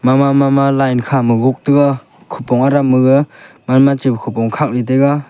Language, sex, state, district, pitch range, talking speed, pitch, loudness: Wancho, male, Arunachal Pradesh, Longding, 125-140 Hz, 145 wpm, 135 Hz, -13 LUFS